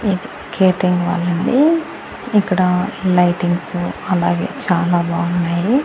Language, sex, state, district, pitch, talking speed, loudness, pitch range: Telugu, female, Andhra Pradesh, Annamaya, 180 Hz, 80 wpm, -17 LUFS, 175-200 Hz